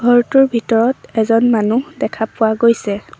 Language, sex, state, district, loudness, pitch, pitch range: Assamese, female, Assam, Sonitpur, -15 LUFS, 230 Hz, 220-245 Hz